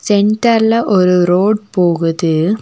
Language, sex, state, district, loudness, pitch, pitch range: Tamil, female, Tamil Nadu, Nilgiris, -13 LUFS, 200 Hz, 175-215 Hz